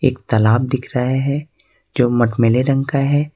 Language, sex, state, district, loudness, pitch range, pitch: Hindi, male, Jharkhand, Ranchi, -17 LUFS, 120-140 Hz, 130 Hz